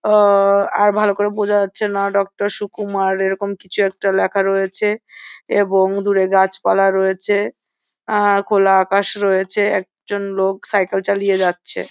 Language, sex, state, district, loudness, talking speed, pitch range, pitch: Bengali, female, West Bengal, Jhargram, -16 LUFS, 130 wpm, 195-205 Hz, 200 Hz